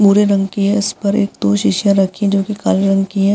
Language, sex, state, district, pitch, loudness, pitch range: Hindi, female, Bihar, Vaishali, 200 Hz, -15 LUFS, 195-205 Hz